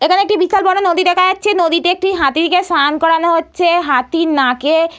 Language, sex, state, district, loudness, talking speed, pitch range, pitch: Bengali, female, West Bengal, Purulia, -13 LUFS, 180 wpm, 325-370 Hz, 340 Hz